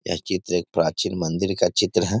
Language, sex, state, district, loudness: Hindi, male, Bihar, East Champaran, -23 LUFS